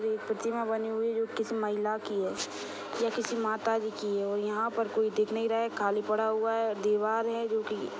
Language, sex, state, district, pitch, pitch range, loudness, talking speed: Hindi, female, Maharashtra, Dhule, 220 Hz, 215-225 Hz, -31 LUFS, 235 wpm